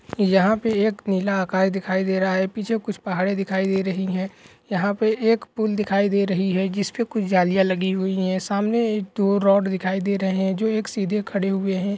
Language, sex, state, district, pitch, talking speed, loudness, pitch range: Hindi, male, Bihar, East Champaran, 195 Hz, 215 wpm, -22 LUFS, 190-210 Hz